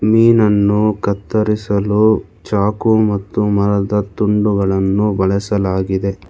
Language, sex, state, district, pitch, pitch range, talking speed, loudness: Kannada, male, Karnataka, Bangalore, 105 Hz, 100-105 Hz, 65 wpm, -15 LUFS